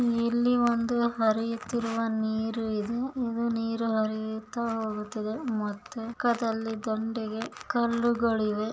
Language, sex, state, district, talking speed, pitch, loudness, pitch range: Kannada, female, Karnataka, Bijapur, 105 wpm, 225 Hz, -29 LUFS, 220-235 Hz